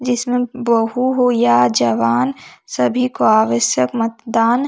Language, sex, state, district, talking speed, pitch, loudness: Hindi, female, Chhattisgarh, Jashpur, 130 wpm, 230 Hz, -16 LUFS